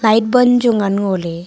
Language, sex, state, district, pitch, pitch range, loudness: Wancho, female, Arunachal Pradesh, Longding, 215 Hz, 190-240 Hz, -14 LUFS